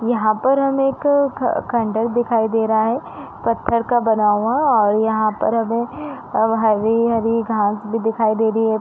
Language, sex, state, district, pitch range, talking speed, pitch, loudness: Hindi, female, Uttar Pradesh, Varanasi, 220-240 Hz, 175 wpm, 225 Hz, -18 LUFS